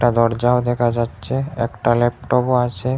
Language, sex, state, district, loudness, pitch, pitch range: Bengali, male, Assam, Hailakandi, -19 LUFS, 120 Hz, 120-125 Hz